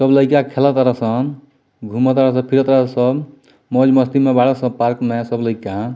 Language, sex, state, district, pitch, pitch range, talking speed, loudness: Bhojpuri, male, Bihar, Muzaffarpur, 130 Hz, 120-135 Hz, 130 wpm, -16 LUFS